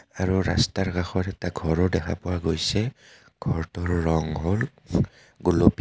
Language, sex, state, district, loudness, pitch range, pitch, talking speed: Assamese, male, Assam, Kamrup Metropolitan, -25 LUFS, 85-95 Hz, 90 Hz, 125 wpm